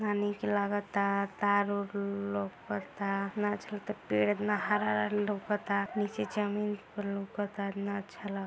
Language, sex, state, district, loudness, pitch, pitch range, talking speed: Hindi, female, Uttar Pradesh, Gorakhpur, -33 LUFS, 205 Hz, 200-205 Hz, 150 wpm